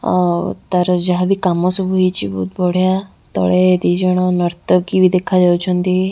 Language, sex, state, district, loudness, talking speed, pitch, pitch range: Odia, female, Odisha, Khordha, -16 LUFS, 135 wpm, 180 Hz, 175-185 Hz